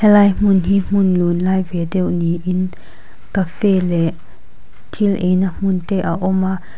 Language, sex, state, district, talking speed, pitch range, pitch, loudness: Mizo, female, Mizoram, Aizawl, 160 wpm, 175-195 Hz, 185 Hz, -17 LUFS